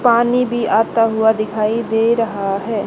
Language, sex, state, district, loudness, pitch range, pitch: Hindi, female, Haryana, Charkhi Dadri, -16 LUFS, 215-235 Hz, 225 Hz